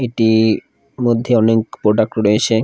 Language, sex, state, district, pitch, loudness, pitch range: Bengali, male, Odisha, Khordha, 110 Hz, -15 LUFS, 110-120 Hz